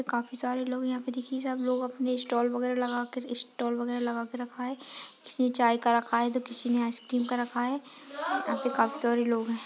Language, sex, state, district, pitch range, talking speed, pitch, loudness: Hindi, female, Goa, North and South Goa, 240-255 Hz, 225 wpm, 245 Hz, -30 LUFS